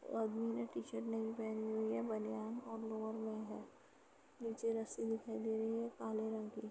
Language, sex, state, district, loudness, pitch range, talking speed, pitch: Hindi, female, Uttar Pradesh, Etah, -43 LUFS, 220-225 Hz, 195 wpm, 220 Hz